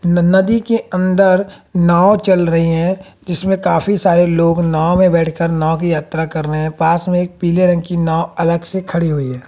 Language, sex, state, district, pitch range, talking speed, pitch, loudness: Hindi, female, Haryana, Jhajjar, 165-185 Hz, 210 wpm, 175 Hz, -14 LUFS